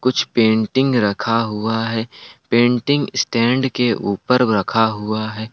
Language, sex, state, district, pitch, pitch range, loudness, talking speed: Hindi, male, Jharkhand, Palamu, 115 Hz, 110-125 Hz, -18 LUFS, 130 wpm